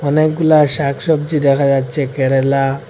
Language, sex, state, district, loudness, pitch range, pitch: Bengali, male, Assam, Hailakandi, -14 LUFS, 135-155 Hz, 140 Hz